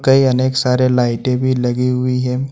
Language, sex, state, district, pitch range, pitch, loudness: Hindi, male, Jharkhand, Ranchi, 125-130 Hz, 125 Hz, -16 LUFS